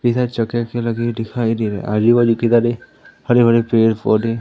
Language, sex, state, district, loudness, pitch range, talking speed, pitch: Hindi, male, Madhya Pradesh, Umaria, -17 LUFS, 115-120 Hz, 205 wpm, 115 Hz